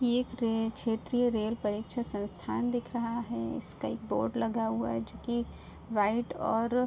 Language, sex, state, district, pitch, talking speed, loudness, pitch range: Hindi, female, Uttar Pradesh, Ghazipur, 225 Hz, 175 wpm, -32 LUFS, 185-240 Hz